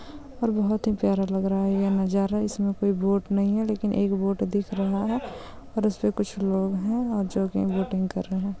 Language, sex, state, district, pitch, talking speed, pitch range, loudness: Hindi, female, West Bengal, Purulia, 200 Hz, 215 wpm, 195-215 Hz, -25 LUFS